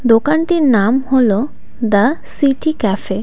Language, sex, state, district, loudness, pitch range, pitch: Bengali, female, West Bengal, Cooch Behar, -15 LUFS, 215-285 Hz, 250 Hz